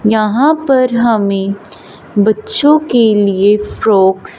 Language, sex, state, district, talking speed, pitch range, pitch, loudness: Hindi, female, Punjab, Fazilka, 110 wpm, 205-240 Hz, 215 Hz, -12 LUFS